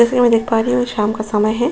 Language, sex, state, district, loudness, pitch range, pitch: Hindi, female, Goa, North and South Goa, -16 LUFS, 215-245 Hz, 230 Hz